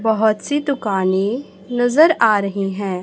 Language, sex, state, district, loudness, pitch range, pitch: Hindi, male, Chhattisgarh, Raipur, -17 LUFS, 195-245 Hz, 220 Hz